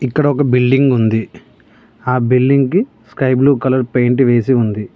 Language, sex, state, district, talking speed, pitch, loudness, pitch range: Telugu, male, Telangana, Mahabubabad, 155 wpm, 130 Hz, -14 LUFS, 125-140 Hz